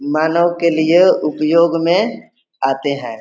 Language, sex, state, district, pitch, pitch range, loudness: Hindi, male, Bihar, East Champaran, 160 Hz, 145-170 Hz, -15 LUFS